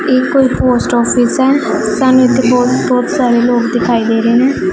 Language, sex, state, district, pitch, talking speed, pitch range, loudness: Punjabi, female, Punjab, Pathankot, 245 Hz, 175 wpm, 235-255 Hz, -11 LUFS